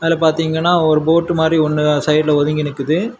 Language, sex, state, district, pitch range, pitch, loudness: Tamil, male, Tamil Nadu, Kanyakumari, 150-165 Hz, 160 Hz, -15 LUFS